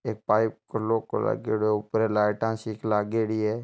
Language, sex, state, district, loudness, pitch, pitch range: Marwari, male, Rajasthan, Churu, -26 LUFS, 110 Hz, 105-110 Hz